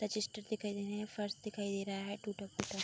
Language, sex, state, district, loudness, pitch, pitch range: Hindi, female, Uttar Pradesh, Budaun, -41 LUFS, 205 Hz, 200-210 Hz